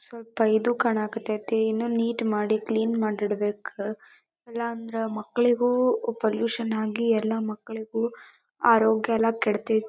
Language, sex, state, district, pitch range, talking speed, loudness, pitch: Kannada, female, Karnataka, Dharwad, 220-235 Hz, 115 wpm, -25 LUFS, 225 Hz